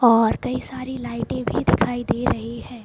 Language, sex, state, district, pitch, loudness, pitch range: Hindi, female, Bihar, Patna, 235 Hz, -23 LUFS, 220-250 Hz